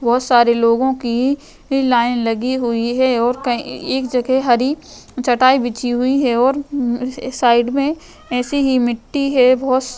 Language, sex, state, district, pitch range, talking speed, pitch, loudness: Hindi, female, Uttar Pradesh, Jyotiba Phule Nagar, 240-265 Hz, 155 wpm, 255 Hz, -16 LUFS